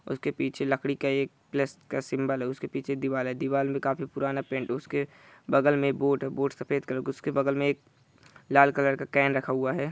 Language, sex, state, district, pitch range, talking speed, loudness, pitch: Hindi, male, Bihar, Saran, 135-140 Hz, 240 wpm, -28 LUFS, 140 Hz